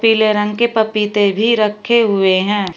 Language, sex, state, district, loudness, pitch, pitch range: Hindi, female, Uttar Pradesh, Shamli, -14 LUFS, 210 Hz, 205-220 Hz